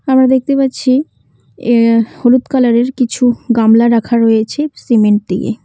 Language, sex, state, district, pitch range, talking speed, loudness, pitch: Bengali, female, West Bengal, Cooch Behar, 230-260 Hz, 125 wpm, -12 LUFS, 240 Hz